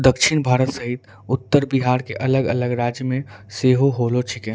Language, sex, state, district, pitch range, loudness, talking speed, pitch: Angika, male, Bihar, Bhagalpur, 120-130 Hz, -20 LUFS, 160 wpm, 125 Hz